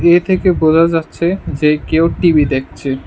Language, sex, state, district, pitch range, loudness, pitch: Bengali, male, Tripura, West Tripura, 150-170 Hz, -14 LUFS, 165 Hz